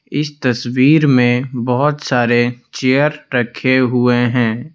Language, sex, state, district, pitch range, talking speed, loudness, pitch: Hindi, male, Assam, Kamrup Metropolitan, 120-140 Hz, 115 wpm, -15 LUFS, 125 Hz